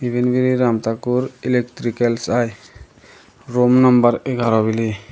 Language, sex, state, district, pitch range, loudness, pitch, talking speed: Chakma, male, Tripura, Dhalai, 115-125 Hz, -18 LUFS, 120 Hz, 115 wpm